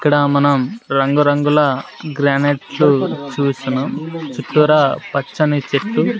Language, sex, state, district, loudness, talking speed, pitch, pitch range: Telugu, male, Andhra Pradesh, Sri Satya Sai, -16 LUFS, 75 wpm, 145 Hz, 140-150 Hz